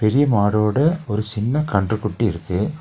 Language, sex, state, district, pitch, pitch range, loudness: Tamil, male, Tamil Nadu, Nilgiris, 110 Hz, 105-140 Hz, -20 LUFS